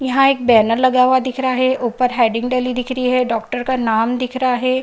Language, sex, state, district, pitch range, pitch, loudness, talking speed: Hindi, female, Bihar, Saharsa, 240-255 Hz, 255 Hz, -16 LUFS, 250 wpm